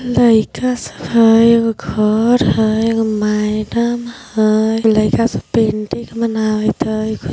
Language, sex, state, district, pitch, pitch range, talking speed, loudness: Hindi, female, Bihar, Vaishali, 225 Hz, 215-230 Hz, 115 wpm, -15 LUFS